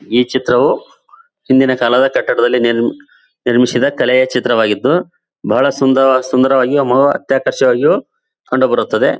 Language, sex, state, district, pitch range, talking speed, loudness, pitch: Kannada, male, Karnataka, Bijapur, 125-135 Hz, 100 wpm, -13 LUFS, 130 Hz